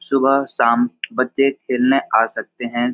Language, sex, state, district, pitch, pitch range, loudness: Hindi, male, Uttar Pradesh, Etah, 125 Hz, 120-135 Hz, -18 LUFS